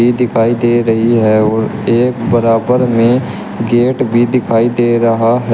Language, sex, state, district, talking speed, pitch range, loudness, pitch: Hindi, male, Uttar Pradesh, Shamli, 150 wpm, 115-120 Hz, -12 LUFS, 120 Hz